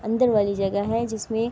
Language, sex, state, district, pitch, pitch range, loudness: Urdu, female, Andhra Pradesh, Anantapur, 220 Hz, 205-230 Hz, -23 LUFS